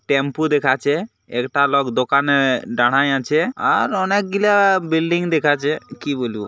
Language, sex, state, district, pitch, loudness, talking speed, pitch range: Bengali, male, West Bengal, Purulia, 145 Hz, -18 LUFS, 130 wpm, 135-165 Hz